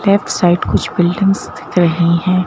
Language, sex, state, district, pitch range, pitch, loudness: Hindi, female, Madhya Pradesh, Bhopal, 175-195 Hz, 180 Hz, -14 LUFS